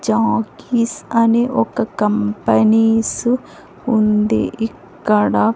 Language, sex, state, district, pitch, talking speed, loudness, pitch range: Telugu, female, Andhra Pradesh, Sri Satya Sai, 225 Hz, 65 wpm, -17 LUFS, 210-235 Hz